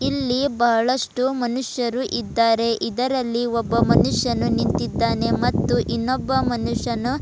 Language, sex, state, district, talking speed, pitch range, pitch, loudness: Kannada, female, Karnataka, Bidar, 90 wpm, 235-260 Hz, 245 Hz, -21 LUFS